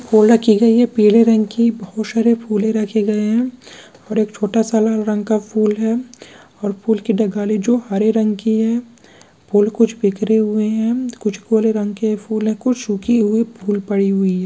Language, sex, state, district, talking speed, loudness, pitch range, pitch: Hindi, female, Rajasthan, Churu, 200 wpm, -17 LUFS, 210-225 Hz, 220 Hz